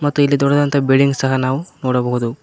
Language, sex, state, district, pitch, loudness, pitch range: Kannada, male, Karnataka, Koppal, 135 Hz, -16 LUFS, 130-145 Hz